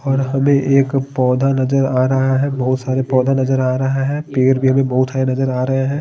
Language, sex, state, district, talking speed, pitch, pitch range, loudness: Hindi, male, Bihar, Patna, 240 wpm, 135 Hz, 130-135 Hz, -16 LUFS